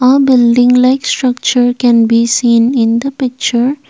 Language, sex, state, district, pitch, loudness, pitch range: English, female, Assam, Kamrup Metropolitan, 245 Hz, -10 LUFS, 235-260 Hz